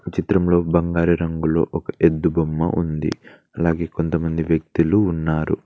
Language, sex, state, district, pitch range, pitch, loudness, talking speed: Telugu, male, Telangana, Mahabubabad, 80-85 Hz, 85 Hz, -20 LUFS, 115 wpm